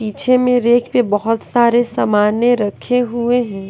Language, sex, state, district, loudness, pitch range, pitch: Hindi, female, Bihar, West Champaran, -15 LUFS, 215-245 Hz, 240 Hz